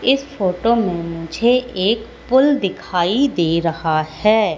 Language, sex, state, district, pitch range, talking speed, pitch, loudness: Hindi, female, Madhya Pradesh, Katni, 170-245 Hz, 130 wpm, 205 Hz, -18 LUFS